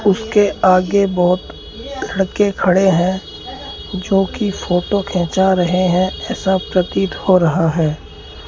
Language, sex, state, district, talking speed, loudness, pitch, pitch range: Hindi, male, Rajasthan, Bikaner, 115 wpm, -16 LUFS, 185 Hz, 180-195 Hz